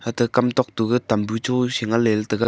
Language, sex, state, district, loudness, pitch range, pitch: Wancho, male, Arunachal Pradesh, Longding, -21 LUFS, 110-125 Hz, 115 Hz